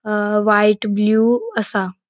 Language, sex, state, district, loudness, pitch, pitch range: Konkani, female, Goa, North and South Goa, -17 LUFS, 210 Hz, 210-220 Hz